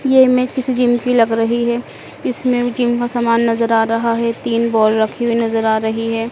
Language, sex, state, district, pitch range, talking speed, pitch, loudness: Hindi, female, Madhya Pradesh, Dhar, 225-245 Hz, 230 wpm, 235 Hz, -16 LUFS